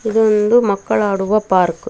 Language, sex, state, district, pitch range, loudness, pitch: Kannada, female, Karnataka, Bangalore, 195-220 Hz, -15 LUFS, 210 Hz